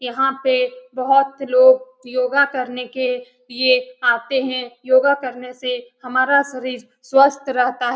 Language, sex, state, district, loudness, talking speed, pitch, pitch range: Hindi, female, Bihar, Lakhisarai, -18 LUFS, 150 wpm, 255 Hz, 250-270 Hz